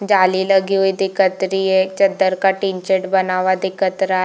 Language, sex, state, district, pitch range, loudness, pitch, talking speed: Hindi, female, Chhattisgarh, Bilaspur, 185-195 Hz, -17 LUFS, 190 Hz, 225 wpm